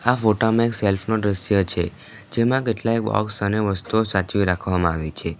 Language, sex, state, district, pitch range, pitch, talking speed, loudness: Gujarati, male, Gujarat, Valsad, 95-115 Hz, 105 Hz, 175 wpm, -21 LUFS